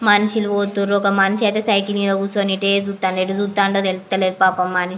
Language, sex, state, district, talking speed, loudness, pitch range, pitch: Telugu, female, Andhra Pradesh, Anantapur, 195 wpm, -18 LUFS, 190-205 Hz, 200 Hz